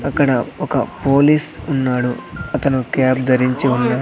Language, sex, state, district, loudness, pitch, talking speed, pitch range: Telugu, male, Andhra Pradesh, Sri Satya Sai, -17 LUFS, 130 Hz, 120 wpm, 125-140 Hz